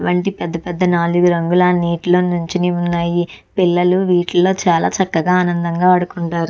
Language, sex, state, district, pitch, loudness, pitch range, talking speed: Telugu, female, Andhra Pradesh, Chittoor, 175 Hz, -16 LUFS, 170-180 Hz, 110 wpm